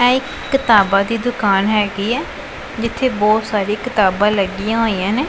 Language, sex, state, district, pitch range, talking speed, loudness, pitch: Punjabi, female, Punjab, Pathankot, 200-245 Hz, 160 wpm, -16 LUFS, 215 Hz